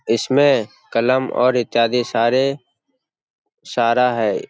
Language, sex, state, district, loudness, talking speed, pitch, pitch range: Hindi, male, Bihar, Jamui, -18 LUFS, 95 wpm, 125 Hz, 115-130 Hz